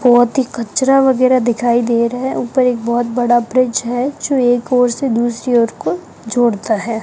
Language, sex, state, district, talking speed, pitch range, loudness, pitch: Hindi, male, Rajasthan, Bikaner, 195 wpm, 235-255 Hz, -15 LUFS, 240 Hz